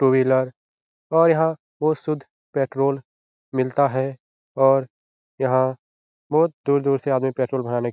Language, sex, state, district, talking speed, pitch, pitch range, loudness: Hindi, male, Bihar, Jahanabad, 135 wpm, 130 Hz, 130-140 Hz, -22 LUFS